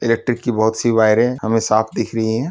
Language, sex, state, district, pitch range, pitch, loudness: Hindi, male, Uttar Pradesh, Deoria, 110-120 Hz, 115 Hz, -17 LUFS